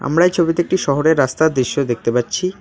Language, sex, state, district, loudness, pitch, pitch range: Bengali, male, West Bengal, Alipurduar, -17 LUFS, 160 Hz, 140-175 Hz